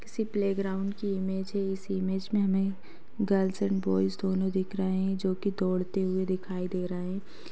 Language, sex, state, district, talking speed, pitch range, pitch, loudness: Hindi, female, Bihar, Saharsa, 200 wpm, 185-195 Hz, 190 Hz, -30 LUFS